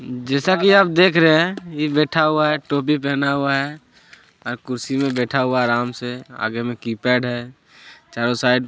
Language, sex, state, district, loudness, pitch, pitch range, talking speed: Hindi, male, Chhattisgarh, Kabirdham, -19 LUFS, 135 Hz, 125-150 Hz, 200 wpm